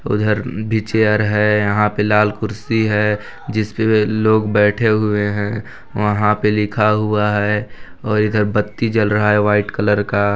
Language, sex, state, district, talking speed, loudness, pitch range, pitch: Hindi, male, Chhattisgarh, Balrampur, 160 wpm, -17 LUFS, 105-110 Hz, 105 Hz